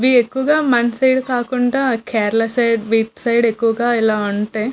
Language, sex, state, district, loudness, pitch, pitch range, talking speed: Telugu, female, Andhra Pradesh, Visakhapatnam, -17 LUFS, 235 Hz, 225-255 Hz, 150 wpm